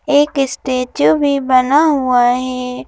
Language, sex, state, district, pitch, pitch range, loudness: Hindi, female, Madhya Pradesh, Bhopal, 255 Hz, 250-285 Hz, -14 LUFS